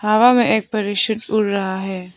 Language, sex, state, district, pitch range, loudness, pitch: Hindi, female, Arunachal Pradesh, Papum Pare, 195-220 Hz, -18 LUFS, 210 Hz